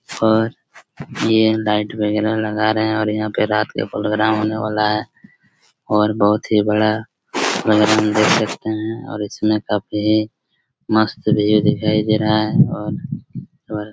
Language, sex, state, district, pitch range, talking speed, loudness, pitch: Hindi, male, Chhattisgarh, Raigarh, 105-110 Hz, 150 wpm, -18 LUFS, 110 Hz